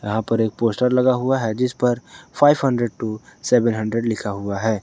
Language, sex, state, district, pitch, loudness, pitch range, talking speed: Hindi, male, Jharkhand, Garhwa, 115 Hz, -20 LUFS, 110-125 Hz, 210 wpm